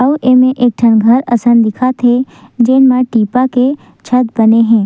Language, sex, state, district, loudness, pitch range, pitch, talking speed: Chhattisgarhi, female, Chhattisgarh, Sukma, -10 LUFS, 230-255 Hz, 245 Hz, 185 wpm